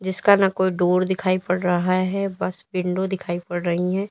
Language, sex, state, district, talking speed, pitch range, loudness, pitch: Hindi, female, Uttar Pradesh, Lalitpur, 205 wpm, 180-190 Hz, -22 LUFS, 185 Hz